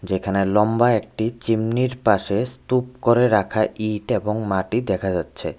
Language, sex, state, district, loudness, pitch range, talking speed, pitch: Bengali, male, Tripura, West Tripura, -21 LUFS, 100-120 Hz, 150 wpm, 110 Hz